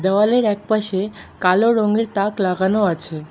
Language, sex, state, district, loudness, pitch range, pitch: Bengali, male, West Bengal, Alipurduar, -18 LUFS, 190-215 Hz, 205 Hz